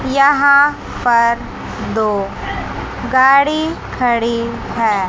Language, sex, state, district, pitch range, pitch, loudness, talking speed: Hindi, female, Chandigarh, Chandigarh, 230-280 Hz, 245 Hz, -15 LUFS, 70 wpm